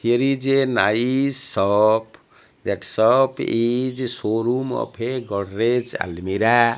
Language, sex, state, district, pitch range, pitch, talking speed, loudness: English, male, Odisha, Malkangiri, 110-130 Hz, 120 Hz, 105 wpm, -20 LUFS